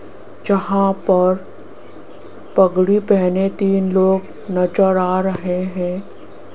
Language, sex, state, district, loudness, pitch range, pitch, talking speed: Hindi, female, Rajasthan, Jaipur, -17 LUFS, 180-195 Hz, 190 Hz, 90 wpm